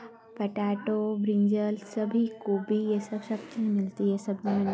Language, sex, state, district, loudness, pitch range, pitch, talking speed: Hindi, female, Bihar, Gaya, -29 LUFS, 205-215 Hz, 210 Hz, 140 wpm